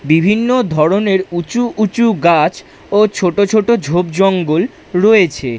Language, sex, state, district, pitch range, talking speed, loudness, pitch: Bengali, male, West Bengal, Dakshin Dinajpur, 175-220 Hz, 105 wpm, -13 LUFS, 195 Hz